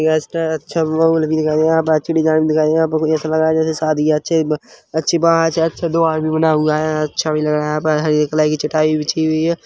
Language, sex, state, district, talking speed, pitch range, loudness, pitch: Hindi, male, Chhattisgarh, Rajnandgaon, 240 wpm, 155-160 Hz, -16 LUFS, 155 Hz